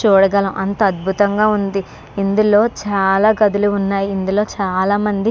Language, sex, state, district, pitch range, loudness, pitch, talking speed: Telugu, female, Andhra Pradesh, Krishna, 195-210 Hz, -16 LUFS, 200 Hz, 125 wpm